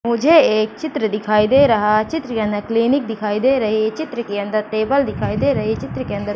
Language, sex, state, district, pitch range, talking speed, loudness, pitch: Hindi, female, Madhya Pradesh, Katni, 215-265 Hz, 245 wpm, -18 LUFS, 220 Hz